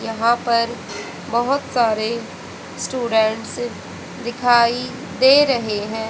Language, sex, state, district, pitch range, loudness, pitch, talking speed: Hindi, female, Haryana, Jhajjar, 225-245 Hz, -19 LUFS, 235 Hz, 90 wpm